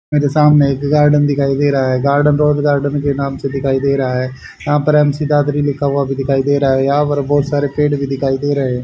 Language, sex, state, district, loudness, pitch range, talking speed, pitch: Hindi, male, Haryana, Charkhi Dadri, -14 LUFS, 135-145 Hz, 260 wpm, 140 Hz